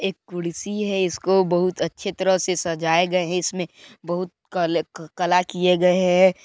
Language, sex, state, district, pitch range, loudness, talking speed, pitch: Hindi, male, Chhattisgarh, Balrampur, 175-185 Hz, -22 LUFS, 165 wpm, 180 Hz